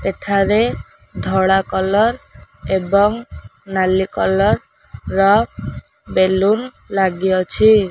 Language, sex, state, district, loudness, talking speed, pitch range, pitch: Odia, female, Odisha, Khordha, -17 LUFS, 70 wpm, 190-210 Hz, 195 Hz